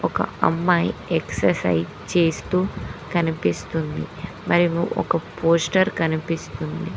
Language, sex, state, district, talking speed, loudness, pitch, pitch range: Telugu, female, Telangana, Mahabubabad, 75 wpm, -22 LUFS, 165 Hz, 160-175 Hz